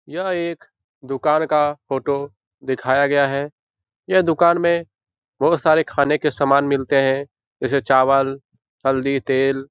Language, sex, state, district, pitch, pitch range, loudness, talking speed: Hindi, male, Bihar, Jahanabad, 140 Hz, 135-150 Hz, -19 LUFS, 135 wpm